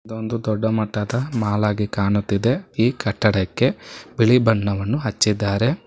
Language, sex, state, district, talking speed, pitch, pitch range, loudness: Kannada, male, Karnataka, Bangalore, 110 wpm, 110 Hz, 105-115 Hz, -20 LUFS